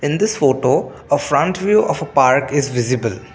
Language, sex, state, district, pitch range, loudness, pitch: English, male, Assam, Kamrup Metropolitan, 130-185 Hz, -16 LUFS, 140 Hz